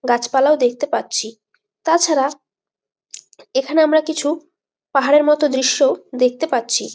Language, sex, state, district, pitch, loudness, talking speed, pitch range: Bengali, female, West Bengal, Malda, 285 Hz, -17 LUFS, 110 wpm, 255-310 Hz